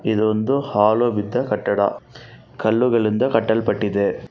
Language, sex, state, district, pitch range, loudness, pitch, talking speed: Kannada, male, Karnataka, Bangalore, 105-120 Hz, -19 LUFS, 110 Hz, 85 wpm